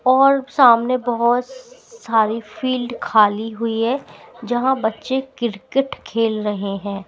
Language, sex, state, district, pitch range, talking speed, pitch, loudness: Hindi, female, Bihar, Patna, 220-265 Hz, 120 wpm, 240 Hz, -19 LUFS